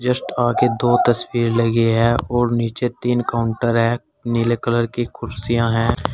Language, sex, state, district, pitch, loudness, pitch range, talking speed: Hindi, male, Uttar Pradesh, Saharanpur, 120 Hz, -19 LUFS, 115-120 Hz, 155 wpm